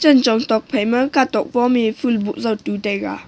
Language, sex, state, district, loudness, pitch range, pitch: Wancho, female, Arunachal Pradesh, Longding, -18 LUFS, 220-255 Hz, 235 Hz